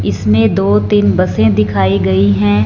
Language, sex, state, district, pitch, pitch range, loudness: Hindi, female, Punjab, Fazilka, 100 Hz, 95-105 Hz, -12 LUFS